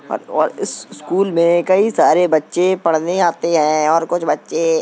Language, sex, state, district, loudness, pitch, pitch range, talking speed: Hindi, male, Uttar Pradesh, Jalaun, -16 LUFS, 170 Hz, 165-185 Hz, 175 wpm